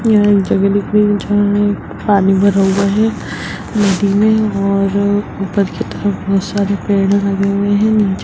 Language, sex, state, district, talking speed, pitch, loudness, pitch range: Hindi, female, Bihar, Muzaffarpur, 190 wpm, 200 Hz, -14 LUFS, 195-205 Hz